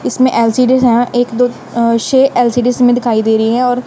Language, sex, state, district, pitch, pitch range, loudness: Hindi, female, Punjab, Kapurthala, 245 Hz, 235-250 Hz, -12 LUFS